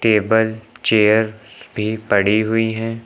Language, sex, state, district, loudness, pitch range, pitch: Hindi, male, Uttar Pradesh, Lucknow, -17 LUFS, 105-115 Hz, 110 Hz